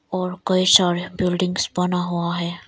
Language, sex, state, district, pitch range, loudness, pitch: Hindi, female, Arunachal Pradesh, Lower Dibang Valley, 175-185 Hz, -20 LUFS, 180 Hz